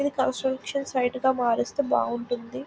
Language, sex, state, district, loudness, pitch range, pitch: Telugu, female, Telangana, Nalgonda, -26 LUFS, 245-275 Hz, 260 Hz